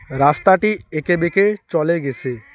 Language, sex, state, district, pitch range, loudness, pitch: Bengali, male, West Bengal, Alipurduar, 135-190 Hz, -18 LUFS, 160 Hz